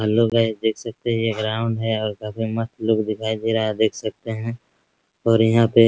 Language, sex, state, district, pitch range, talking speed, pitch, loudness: Hindi, male, Bihar, Araria, 110-115 Hz, 245 wpm, 110 Hz, -22 LUFS